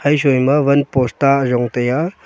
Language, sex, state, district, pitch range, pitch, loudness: Wancho, male, Arunachal Pradesh, Longding, 125-145 Hz, 140 Hz, -15 LUFS